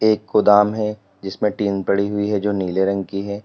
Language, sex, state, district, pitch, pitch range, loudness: Hindi, male, Uttar Pradesh, Lalitpur, 100 Hz, 100-105 Hz, -19 LUFS